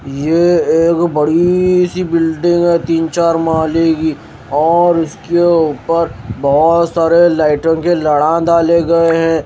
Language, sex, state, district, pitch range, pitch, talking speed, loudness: Hindi, male, Himachal Pradesh, Shimla, 160-170 Hz, 165 Hz, 135 wpm, -12 LUFS